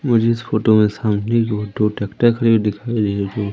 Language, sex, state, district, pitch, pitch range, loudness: Hindi, male, Madhya Pradesh, Umaria, 110 Hz, 105-115 Hz, -18 LUFS